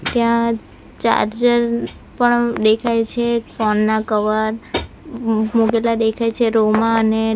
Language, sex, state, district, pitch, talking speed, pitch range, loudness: Gujarati, female, Gujarat, Valsad, 230 Hz, 120 wpm, 220-235 Hz, -18 LUFS